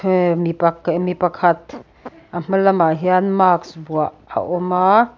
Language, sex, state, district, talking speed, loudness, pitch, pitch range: Mizo, female, Mizoram, Aizawl, 160 wpm, -18 LUFS, 175 Hz, 170-185 Hz